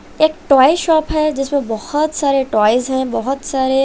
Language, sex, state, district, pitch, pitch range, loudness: Hindi, female, Chhattisgarh, Raipur, 275 Hz, 265-305 Hz, -15 LUFS